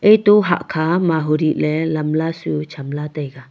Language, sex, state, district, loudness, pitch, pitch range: Wancho, female, Arunachal Pradesh, Longding, -18 LUFS, 155 Hz, 150-170 Hz